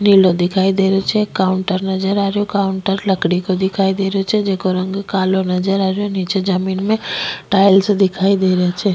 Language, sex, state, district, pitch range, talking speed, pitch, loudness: Rajasthani, female, Rajasthan, Nagaur, 190-195 Hz, 190 wpm, 195 Hz, -16 LUFS